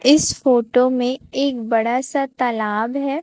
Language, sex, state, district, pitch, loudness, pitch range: Hindi, female, Chhattisgarh, Raipur, 255 Hz, -19 LUFS, 240-275 Hz